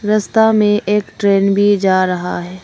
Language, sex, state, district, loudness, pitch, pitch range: Hindi, female, Arunachal Pradesh, Longding, -14 LUFS, 205 Hz, 185-210 Hz